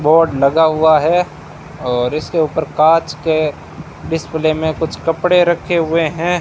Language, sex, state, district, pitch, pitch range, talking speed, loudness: Hindi, male, Rajasthan, Bikaner, 160 Hz, 155-165 Hz, 150 wpm, -15 LUFS